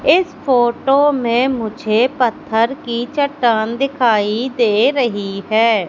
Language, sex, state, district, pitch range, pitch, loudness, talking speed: Hindi, female, Madhya Pradesh, Katni, 220-270 Hz, 240 Hz, -16 LUFS, 110 wpm